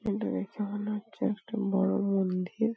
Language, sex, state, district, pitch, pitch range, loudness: Bengali, female, West Bengal, Paschim Medinipur, 205 Hz, 195-215 Hz, -31 LUFS